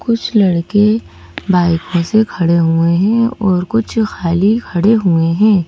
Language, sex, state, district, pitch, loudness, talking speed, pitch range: Hindi, female, Madhya Pradesh, Bhopal, 195 Hz, -13 LUFS, 135 wpm, 170-220 Hz